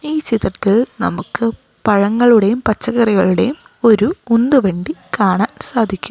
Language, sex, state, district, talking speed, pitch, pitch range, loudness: Malayalam, female, Kerala, Kozhikode, 90 wpm, 225 Hz, 195-240 Hz, -15 LUFS